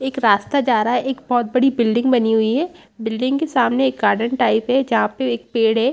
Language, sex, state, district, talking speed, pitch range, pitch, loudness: Hindi, female, Chhattisgarh, Rajnandgaon, 245 wpm, 225-265 Hz, 245 Hz, -18 LUFS